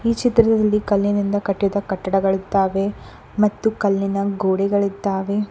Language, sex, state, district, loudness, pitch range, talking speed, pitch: Kannada, female, Karnataka, Koppal, -20 LUFS, 195-210 Hz, 85 wpm, 200 Hz